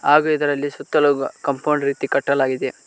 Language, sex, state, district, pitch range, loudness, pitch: Kannada, male, Karnataka, Koppal, 140-150 Hz, -20 LUFS, 145 Hz